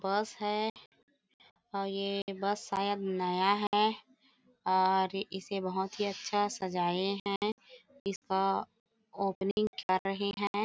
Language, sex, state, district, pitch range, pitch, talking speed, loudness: Hindi, female, Chhattisgarh, Bilaspur, 190-210 Hz, 200 Hz, 115 wpm, -33 LUFS